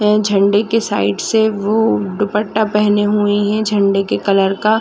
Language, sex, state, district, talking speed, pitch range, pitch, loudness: Hindi, female, Chhattisgarh, Raigarh, 175 wpm, 200-215 Hz, 210 Hz, -15 LUFS